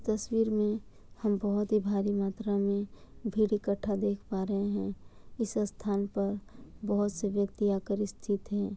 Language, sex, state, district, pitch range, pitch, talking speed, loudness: Hindi, female, Bihar, Kishanganj, 200-210 Hz, 205 Hz, 155 wpm, -32 LUFS